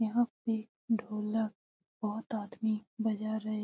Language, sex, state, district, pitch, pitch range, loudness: Hindi, female, Bihar, Lakhisarai, 220 Hz, 215-225 Hz, -35 LUFS